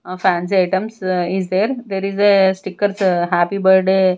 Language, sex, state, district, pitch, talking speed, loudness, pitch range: English, female, Punjab, Kapurthala, 190 Hz, 145 wpm, -17 LUFS, 185-195 Hz